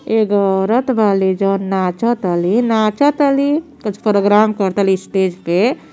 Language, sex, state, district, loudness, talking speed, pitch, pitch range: Bhojpuri, female, Uttar Pradesh, Gorakhpur, -15 LUFS, 140 wpm, 205 Hz, 190-235 Hz